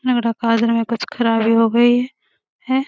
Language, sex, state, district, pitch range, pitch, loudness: Hindi, female, Bihar, Jamui, 230-250 Hz, 235 Hz, -17 LUFS